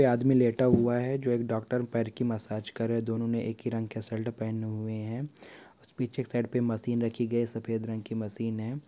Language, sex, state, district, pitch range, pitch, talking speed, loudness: Hindi, male, Uttar Pradesh, Etah, 110-120 Hz, 115 Hz, 245 wpm, -30 LUFS